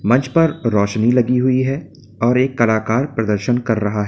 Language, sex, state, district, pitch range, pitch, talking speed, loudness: Hindi, male, Uttar Pradesh, Lalitpur, 110-130 Hz, 120 Hz, 190 wpm, -17 LUFS